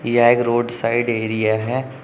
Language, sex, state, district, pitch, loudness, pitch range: Hindi, male, Uttar Pradesh, Lucknow, 120 Hz, -19 LUFS, 115-120 Hz